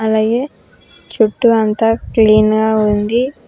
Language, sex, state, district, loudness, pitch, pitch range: Telugu, female, Telangana, Hyderabad, -13 LUFS, 220 Hz, 215-230 Hz